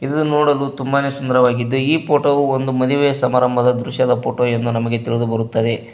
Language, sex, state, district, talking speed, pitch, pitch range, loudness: Kannada, male, Karnataka, Koppal, 150 wpm, 130 Hz, 120-140 Hz, -17 LUFS